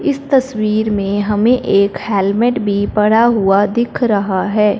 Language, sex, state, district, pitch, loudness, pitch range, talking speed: Hindi, female, Punjab, Fazilka, 210 Hz, -14 LUFS, 200-235 Hz, 150 wpm